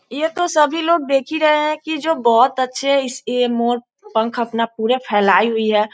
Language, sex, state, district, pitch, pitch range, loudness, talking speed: Hindi, female, Bihar, East Champaran, 255 Hz, 230-305 Hz, -17 LUFS, 210 wpm